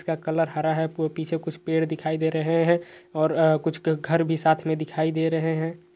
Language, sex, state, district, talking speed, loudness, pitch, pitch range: Hindi, male, Uttar Pradesh, Etah, 230 wpm, -24 LUFS, 160 Hz, 160-165 Hz